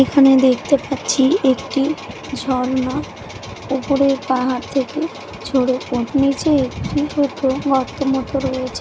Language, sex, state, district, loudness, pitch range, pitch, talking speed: Bengali, female, West Bengal, Jalpaiguri, -18 LUFS, 260-275 Hz, 270 Hz, 110 wpm